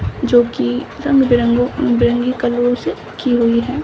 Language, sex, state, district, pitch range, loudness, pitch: Hindi, female, Bihar, Samastipur, 240-250 Hz, -16 LUFS, 240 Hz